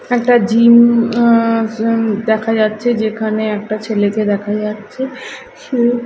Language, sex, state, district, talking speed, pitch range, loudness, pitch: Bengali, female, Odisha, Malkangiri, 140 wpm, 215-240 Hz, -14 LUFS, 225 Hz